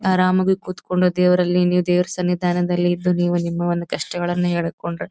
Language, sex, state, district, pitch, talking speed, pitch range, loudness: Kannada, female, Karnataka, Dharwad, 180 Hz, 155 wpm, 175-180 Hz, -20 LUFS